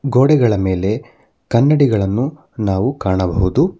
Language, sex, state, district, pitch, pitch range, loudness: Kannada, male, Karnataka, Bangalore, 120 Hz, 95-140 Hz, -16 LUFS